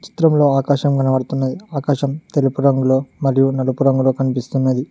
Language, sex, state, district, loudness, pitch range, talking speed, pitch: Telugu, male, Telangana, Mahabubabad, -17 LUFS, 130-140 Hz, 120 wpm, 135 Hz